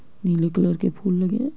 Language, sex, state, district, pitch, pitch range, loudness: Hindi, male, Jharkhand, Jamtara, 185 Hz, 175-205 Hz, -22 LUFS